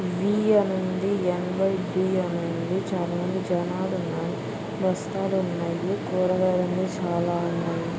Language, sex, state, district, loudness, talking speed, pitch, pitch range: Telugu, female, Andhra Pradesh, Guntur, -26 LUFS, 115 wpm, 185 Hz, 175-190 Hz